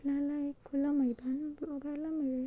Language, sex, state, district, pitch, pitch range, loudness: Marathi, female, Maharashtra, Chandrapur, 285 Hz, 275-295 Hz, -35 LUFS